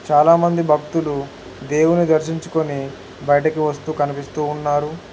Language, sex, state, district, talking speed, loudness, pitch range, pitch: Telugu, male, Telangana, Hyderabad, 95 wpm, -19 LUFS, 145-160 Hz, 150 Hz